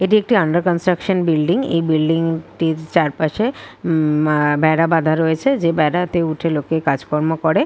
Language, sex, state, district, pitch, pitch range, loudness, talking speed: Bengali, female, West Bengal, Kolkata, 160 Hz, 155-175 Hz, -17 LUFS, 170 wpm